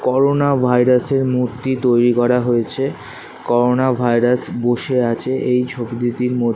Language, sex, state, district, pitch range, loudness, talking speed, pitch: Bengali, male, West Bengal, Kolkata, 120-130 Hz, -17 LUFS, 145 wpm, 125 Hz